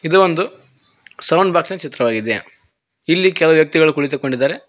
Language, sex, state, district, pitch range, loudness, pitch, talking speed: Kannada, male, Karnataka, Koppal, 140-175 Hz, -16 LUFS, 160 Hz, 115 wpm